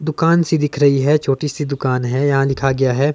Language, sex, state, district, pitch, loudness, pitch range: Hindi, male, Himachal Pradesh, Shimla, 140 Hz, -16 LUFS, 135-150 Hz